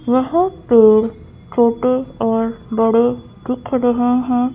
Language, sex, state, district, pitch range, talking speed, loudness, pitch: Hindi, female, Madhya Pradesh, Bhopal, 230-255 Hz, 105 wpm, -16 LUFS, 245 Hz